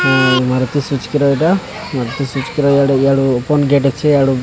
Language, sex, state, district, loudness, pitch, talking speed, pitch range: Odia, male, Odisha, Sambalpur, -14 LUFS, 140 Hz, 160 wpm, 130-145 Hz